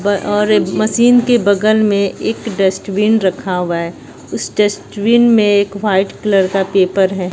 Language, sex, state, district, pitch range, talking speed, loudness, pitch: Hindi, female, Bihar, Katihar, 190-215 Hz, 155 wpm, -14 LUFS, 200 Hz